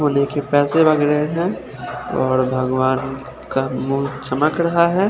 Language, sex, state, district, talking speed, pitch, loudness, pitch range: Hindi, male, Chandigarh, Chandigarh, 80 wpm, 140 Hz, -19 LUFS, 130-155 Hz